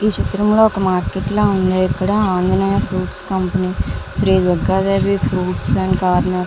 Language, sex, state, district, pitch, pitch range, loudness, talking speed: Telugu, female, Andhra Pradesh, Visakhapatnam, 185 Hz, 185-195 Hz, -17 LUFS, 140 wpm